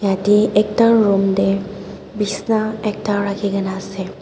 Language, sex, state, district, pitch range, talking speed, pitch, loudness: Nagamese, female, Nagaland, Dimapur, 195-215 Hz, 130 wpm, 200 Hz, -17 LUFS